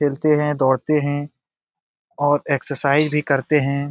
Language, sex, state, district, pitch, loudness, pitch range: Hindi, male, Bihar, Jamui, 145 Hz, -19 LUFS, 140-150 Hz